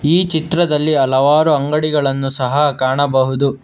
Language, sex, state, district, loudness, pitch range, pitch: Kannada, male, Karnataka, Bangalore, -15 LUFS, 135-155 Hz, 145 Hz